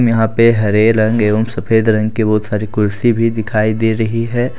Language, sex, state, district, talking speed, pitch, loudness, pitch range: Hindi, male, Jharkhand, Deoghar, 210 wpm, 110 Hz, -14 LUFS, 105-115 Hz